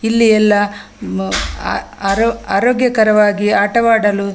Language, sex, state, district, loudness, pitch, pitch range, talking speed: Kannada, female, Karnataka, Dakshina Kannada, -14 LUFS, 210 Hz, 200-225 Hz, 125 wpm